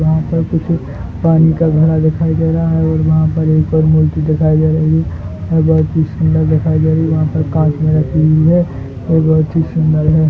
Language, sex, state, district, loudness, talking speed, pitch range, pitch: Hindi, male, Chhattisgarh, Bilaspur, -13 LUFS, 225 wpm, 155-160 Hz, 155 Hz